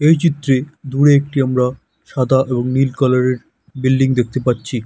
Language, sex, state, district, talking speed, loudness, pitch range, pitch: Bengali, male, West Bengal, Dakshin Dinajpur, 150 wpm, -16 LUFS, 125-140 Hz, 130 Hz